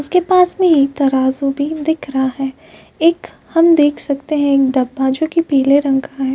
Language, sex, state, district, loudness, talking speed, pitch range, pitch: Hindi, female, Uttar Pradesh, Jyotiba Phule Nagar, -15 LUFS, 200 wpm, 270-320 Hz, 280 Hz